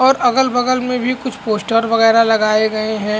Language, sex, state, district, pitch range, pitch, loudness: Hindi, male, Chhattisgarh, Bastar, 215-255 Hz, 230 Hz, -15 LUFS